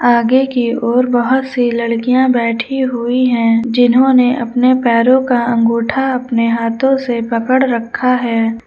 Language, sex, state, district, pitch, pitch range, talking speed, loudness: Hindi, female, Uttar Pradesh, Lucknow, 245 Hz, 235-255 Hz, 140 wpm, -13 LUFS